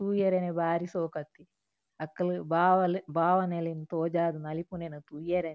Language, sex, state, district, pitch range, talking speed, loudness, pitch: Tulu, female, Karnataka, Dakshina Kannada, 160-180 Hz, 110 wpm, -30 LUFS, 170 Hz